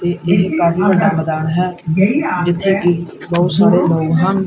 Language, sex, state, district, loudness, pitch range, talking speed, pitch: Punjabi, male, Punjab, Kapurthala, -15 LUFS, 170-190 Hz, 160 wpm, 175 Hz